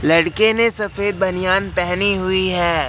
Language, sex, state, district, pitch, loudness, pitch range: Hindi, male, Madhya Pradesh, Katni, 185 Hz, -17 LUFS, 180-200 Hz